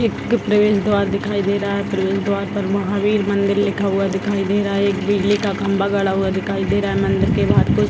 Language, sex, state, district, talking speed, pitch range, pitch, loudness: Hindi, female, Bihar, Jamui, 250 wpm, 195-205 Hz, 200 Hz, -18 LUFS